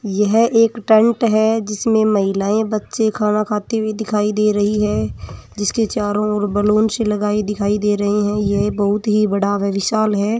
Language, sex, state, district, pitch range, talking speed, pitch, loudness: Marwari, female, Rajasthan, Churu, 205-220 Hz, 175 wpm, 210 Hz, -17 LUFS